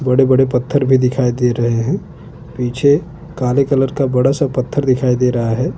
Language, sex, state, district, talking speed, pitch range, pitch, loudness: Hindi, male, Chhattisgarh, Bastar, 195 wpm, 125-140 Hz, 130 Hz, -15 LUFS